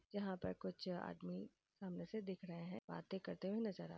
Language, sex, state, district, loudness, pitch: Hindi, female, Uttar Pradesh, Varanasi, -48 LUFS, 180 Hz